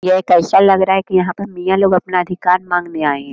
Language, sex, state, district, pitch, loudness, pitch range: Hindi, male, Bihar, Jamui, 185 Hz, -14 LUFS, 175-190 Hz